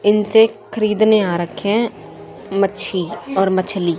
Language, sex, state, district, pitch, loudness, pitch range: Hindi, female, Haryana, Jhajjar, 205 Hz, -17 LUFS, 185-215 Hz